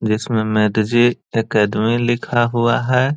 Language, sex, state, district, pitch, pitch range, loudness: Hindi, male, Bihar, Jahanabad, 115 Hz, 110-120 Hz, -17 LUFS